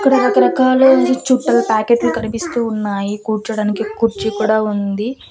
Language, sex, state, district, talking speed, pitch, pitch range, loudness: Telugu, female, Andhra Pradesh, Annamaya, 115 wpm, 220 Hz, 210-245 Hz, -15 LUFS